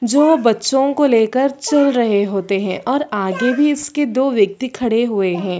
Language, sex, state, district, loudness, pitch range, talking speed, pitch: Hindi, female, Chhattisgarh, Sarguja, -16 LUFS, 205-275 Hz, 180 wpm, 250 Hz